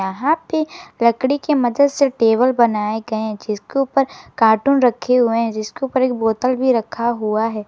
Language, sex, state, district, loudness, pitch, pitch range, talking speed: Hindi, female, Jharkhand, Garhwa, -18 LUFS, 240 Hz, 220-275 Hz, 185 wpm